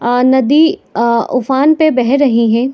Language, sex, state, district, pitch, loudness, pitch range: Hindi, female, Chhattisgarh, Bilaspur, 255 Hz, -12 LUFS, 240-285 Hz